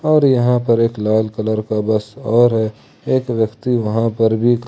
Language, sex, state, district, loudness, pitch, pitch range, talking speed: Hindi, male, Jharkhand, Ranchi, -17 LUFS, 115 Hz, 110-120 Hz, 205 wpm